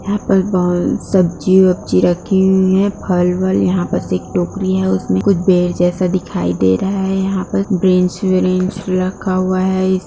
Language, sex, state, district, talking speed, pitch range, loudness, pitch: Hindi, female, Bihar, Darbhanga, 155 wpm, 180-190 Hz, -15 LUFS, 185 Hz